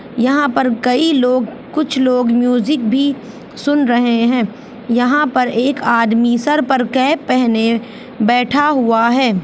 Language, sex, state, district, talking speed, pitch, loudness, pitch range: Hindi, female, Bihar, Saharsa, 145 wpm, 250 Hz, -14 LUFS, 235-270 Hz